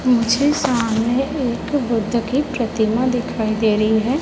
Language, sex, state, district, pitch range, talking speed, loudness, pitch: Hindi, female, Chhattisgarh, Raipur, 225-265 Hz, 140 wpm, -19 LUFS, 240 Hz